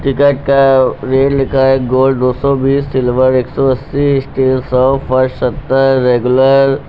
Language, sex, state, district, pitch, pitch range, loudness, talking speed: Hindi, male, Uttar Pradesh, Lucknow, 135 Hz, 130-135 Hz, -12 LUFS, 165 wpm